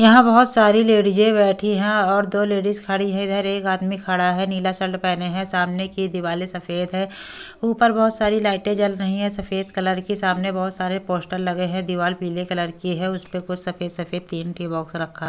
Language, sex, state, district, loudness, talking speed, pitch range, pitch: Hindi, female, Delhi, New Delhi, -21 LUFS, 210 wpm, 180-200 Hz, 190 Hz